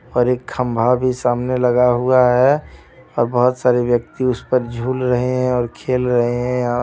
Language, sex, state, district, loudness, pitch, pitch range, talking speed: Hindi, male, Jharkhand, Deoghar, -17 LUFS, 125 Hz, 120-125 Hz, 185 wpm